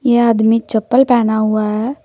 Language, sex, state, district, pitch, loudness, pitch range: Hindi, female, Jharkhand, Deoghar, 225 Hz, -14 LUFS, 220-245 Hz